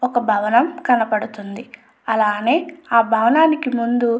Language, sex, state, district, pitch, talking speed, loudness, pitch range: Telugu, female, Andhra Pradesh, Anantapur, 235 Hz, 115 wpm, -17 LUFS, 220-255 Hz